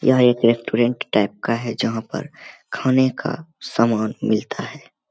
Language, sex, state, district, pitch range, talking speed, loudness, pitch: Hindi, male, Bihar, Begusarai, 110-125 Hz, 165 wpm, -20 LUFS, 115 Hz